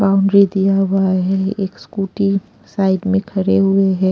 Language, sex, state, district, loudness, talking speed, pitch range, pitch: Hindi, female, Punjab, Pathankot, -16 LUFS, 160 wpm, 190-195 Hz, 195 Hz